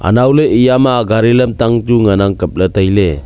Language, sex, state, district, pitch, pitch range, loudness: Wancho, male, Arunachal Pradesh, Longding, 115 Hz, 100-120 Hz, -11 LUFS